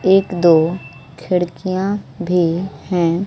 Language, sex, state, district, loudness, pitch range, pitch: Hindi, female, Bihar, West Champaran, -17 LUFS, 165-185 Hz, 175 Hz